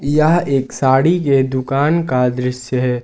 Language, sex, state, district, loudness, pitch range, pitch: Hindi, male, Jharkhand, Garhwa, -16 LUFS, 125-145 Hz, 135 Hz